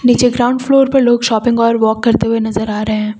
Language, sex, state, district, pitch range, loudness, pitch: Hindi, female, Uttar Pradesh, Lucknow, 220-245 Hz, -13 LUFS, 230 Hz